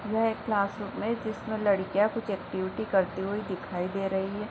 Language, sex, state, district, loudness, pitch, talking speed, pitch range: Hindi, female, Bihar, Jahanabad, -30 LUFS, 205 Hz, 200 wpm, 190-220 Hz